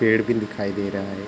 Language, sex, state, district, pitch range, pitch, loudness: Hindi, male, Uttar Pradesh, Ghazipur, 100-110 Hz, 100 Hz, -24 LUFS